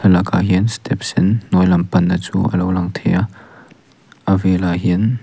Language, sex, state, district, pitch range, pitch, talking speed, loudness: Mizo, male, Mizoram, Aizawl, 90-95 Hz, 90 Hz, 185 wpm, -16 LUFS